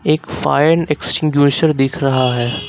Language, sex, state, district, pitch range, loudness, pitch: Hindi, male, Uttar Pradesh, Lucknow, 135-155 Hz, -14 LUFS, 145 Hz